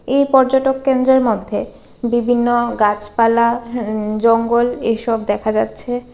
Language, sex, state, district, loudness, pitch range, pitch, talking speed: Bengali, female, Tripura, West Tripura, -16 LUFS, 225-245 Hz, 240 Hz, 100 wpm